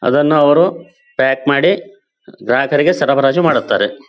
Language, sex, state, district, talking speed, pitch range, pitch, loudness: Kannada, male, Karnataka, Bijapur, 105 wpm, 135-175 Hz, 145 Hz, -13 LUFS